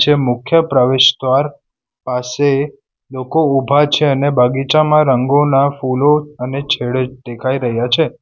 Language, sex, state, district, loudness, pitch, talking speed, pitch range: Gujarati, male, Gujarat, Valsad, -14 LUFS, 135 Hz, 115 wpm, 125-145 Hz